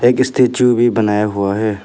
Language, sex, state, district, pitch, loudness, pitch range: Hindi, male, Arunachal Pradesh, Papum Pare, 120 Hz, -14 LUFS, 105-125 Hz